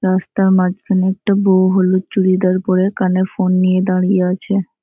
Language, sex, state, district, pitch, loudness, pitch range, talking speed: Bengali, female, West Bengal, North 24 Parganas, 185 Hz, -15 LUFS, 185-190 Hz, 150 wpm